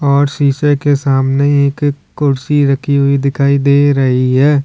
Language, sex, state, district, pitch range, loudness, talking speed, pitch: Hindi, male, Uttar Pradesh, Lalitpur, 140-145 Hz, -12 LUFS, 170 wpm, 140 Hz